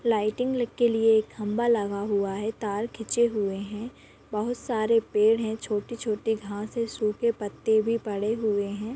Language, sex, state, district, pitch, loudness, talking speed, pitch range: Hindi, female, Chhattisgarh, Rajnandgaon, 220 Hz, -27 LUFS, 180 wpm, 210-230 Hz